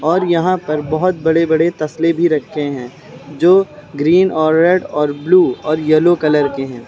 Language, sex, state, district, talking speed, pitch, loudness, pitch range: Hindi, male, Uttar Pradesh, Lucknow, 185 wpm, 155 Hz, -14 LUFS, 150-175 Hz